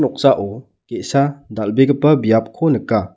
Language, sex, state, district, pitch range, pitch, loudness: Garo, male, Meghalaya, West Garo Hills, 105-140 Hz, 115 Hz, -16 LUFS